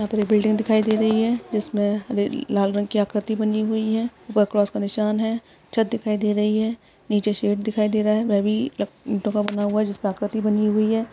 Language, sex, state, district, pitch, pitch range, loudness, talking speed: Hindi, female, Uttar Pradesh, Etah, 215 Hz, 210-220 Hz, -22 LUFS, 250 wpm